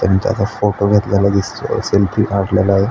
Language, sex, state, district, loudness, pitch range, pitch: Marathi, male, Maharashtra, Aurangabad, -16 LUFS, 95-105 Hz, 100 Hz